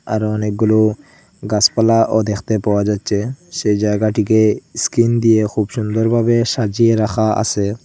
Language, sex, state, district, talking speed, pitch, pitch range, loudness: Bengali, male, Assam, Hailakandi, 130 wpm, 110 Hz, 105-115 Hz, -16 LUFS